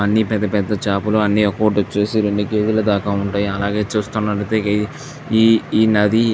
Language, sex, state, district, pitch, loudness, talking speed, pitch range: Telugu, male, Andhra Pradesh, Chittoor, 105 Hz, -17 LUFS, 150 wpm, 105-110 Hz